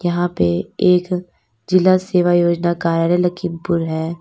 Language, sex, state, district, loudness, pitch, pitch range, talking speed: Hindi, female, Uttar Pradesh, Lalitpur, -17 LUFS, 175 Hz, 165-180 Hz, 130 wpm